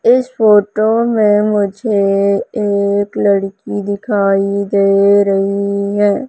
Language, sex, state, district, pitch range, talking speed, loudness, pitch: Hindi, female, Madhya Pradesh, Umaria, 200-210 Hz, 95 wpm, -13 LUFS, 200 Hz